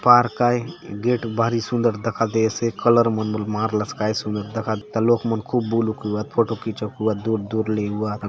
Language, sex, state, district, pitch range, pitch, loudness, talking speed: Halbi, male, Chhattisgarh, Bastar, 105-115 Hz, 110 Hz, -22 LUFS, 210 wpm